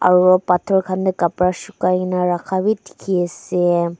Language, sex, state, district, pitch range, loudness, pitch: Nagamese, female, Nagaland, Dimapur, 175-190 Hz, -18 LUFS, 180 Hz